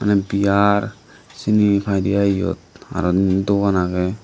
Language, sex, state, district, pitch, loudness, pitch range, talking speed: Chakma, male, Tripura, Dhalai, 100 Hz, -18 LUFS, 95-100 Hz, 125 wpm